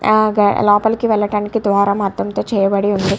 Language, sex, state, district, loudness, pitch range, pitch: Telugu, female, Andhra Pradesh, Guntur, -15 LUFS, 200-215 Hz, 205 Hz